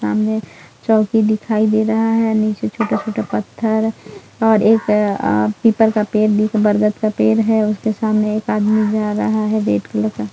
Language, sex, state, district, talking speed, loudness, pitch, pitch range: Hindi, female, Bihar, Bhagalpur, 170 wpm, -16 LUFS, 215 Hz, 210-220 Hz